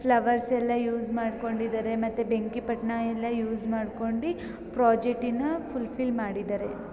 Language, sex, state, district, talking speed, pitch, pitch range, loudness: Kannada, female, Karnataka, Gulbarga, 130 wpm, 230 Hz, 225-240 Hz, -29 LUFS